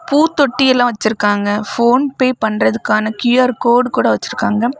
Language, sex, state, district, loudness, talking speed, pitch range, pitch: Tamil, female, Tamil Nadu, Kanyakumari, -14 LUFS, 125 wpm, 220-260 Hz, 245 Hz